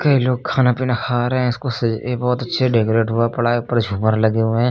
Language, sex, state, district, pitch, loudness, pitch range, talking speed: Hindi, male, Uttar Pradesh, Lucknow, 120 Hz, -18 LUFS, 115-125 Hz, 265 wpm